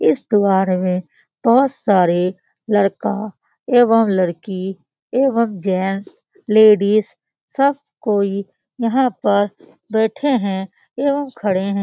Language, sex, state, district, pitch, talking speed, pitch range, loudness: Hindi, female, Bihar, Lakhisarai, 205 Hz, 105 wpm, 190-235 Hz, -17 LUFS